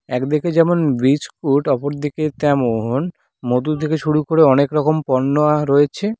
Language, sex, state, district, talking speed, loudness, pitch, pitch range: Bengali, male, West Bengal, Cooch Behar, 155 wpm, -17 LUFS, 150 Hz, 135-155 Hz